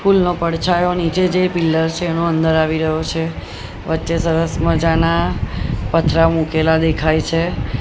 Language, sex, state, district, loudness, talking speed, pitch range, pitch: Gujarati, female, Gujarat, Gandhinagar, -17 LUFS, 140 wpm, 160-170 Hz, 165 Hz